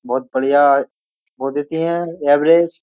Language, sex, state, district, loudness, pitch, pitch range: Hindi, male, Uttar Pradesh, Jyotiba Phule Nagar, -17 LUFS, 145 Hz, 140-165 Hz